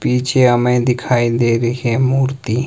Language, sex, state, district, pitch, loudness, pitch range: Hindi, male, Himachal Pradesh, Shimla, 125 Hz, -15 LUFS, 120-130 Hz